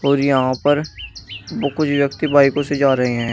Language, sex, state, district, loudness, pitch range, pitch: Hindi, male, Uttar Pradesh, Shamli, -17 LUFS, 125-145 Hz, 140 Hz